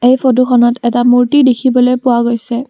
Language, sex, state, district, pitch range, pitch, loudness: Assamese, female, Assam, Kamrup Metropolitan, 240-255 Hz, 245 Hz, -11 LUFS